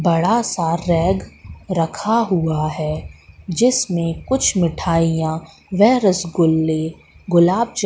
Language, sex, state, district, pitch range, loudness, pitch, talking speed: Hindi, female, Madhya Pradesh, Katni, 160-195 Hz, -18 LUFS, 170 Hz, 100 wpm